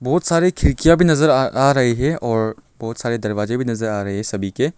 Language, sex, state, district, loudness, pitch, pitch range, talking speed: Hindi, male, Arunachal Pradesh, Longding, -18 LUFS, 125 Hz, 110-155 Hz, 250 wpm